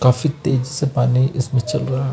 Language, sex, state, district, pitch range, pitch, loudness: Hindi, male, Chhattisgarh, Bilaspur, 125-140 Hz, 130 Hz, -19 LUFS